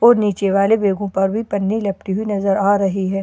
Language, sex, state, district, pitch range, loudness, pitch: Hindi, female, Bihar, Katihar, 195-210 Hz, -18 LUFS, 200 Hz